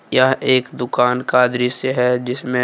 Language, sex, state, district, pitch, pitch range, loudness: Hindi, male, Jharkhand, Deoghar, 125 Hz, 125-130 Hz, -17 LUFS